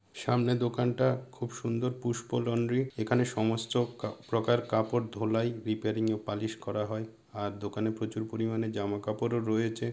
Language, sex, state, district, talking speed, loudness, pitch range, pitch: Bengali, male, West Bengal, Malda, 150 wpm, -31 LUFS, 110-120 Hz, 115 Hz